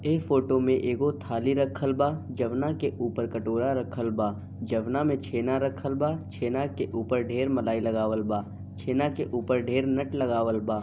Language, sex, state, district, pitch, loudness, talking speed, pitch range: Bhojpuri, male, Bihar, Gopalganj, 125 Hz, -28 LUFS, 170 wpm, 115-135 Hz